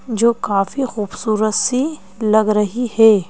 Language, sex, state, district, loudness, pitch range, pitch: Hindi, female, Madhya Pradesh, Bhopal, -17 LUFS, 210-240 Hz, 220 Hz